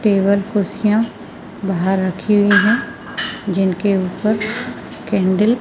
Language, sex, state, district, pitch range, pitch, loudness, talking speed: Hindi, female, Madhya Pradesh, Umaria, 195-215 Hz, 205 Hz, -17 LUFS, 105 wpm